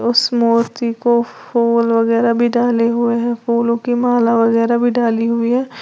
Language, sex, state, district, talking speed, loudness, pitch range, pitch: Hindi, female, Uttar Pradesh, Lalitpur, 175 wpm, -15 LUFS, 230-240 Hz, 235 Hz